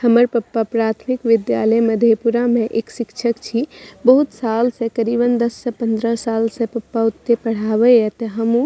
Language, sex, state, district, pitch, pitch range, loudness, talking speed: Maithili, female, Bihar, Madhepura, 230 Hz, 225-240 Hz, -18 LUFS, 165 wpm